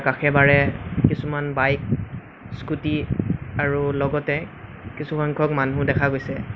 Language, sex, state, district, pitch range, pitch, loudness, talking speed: Assamese, male, Assam, Sonitpur, 130-145 Hz, 140 Hz, -22 LUFS, 110 wpm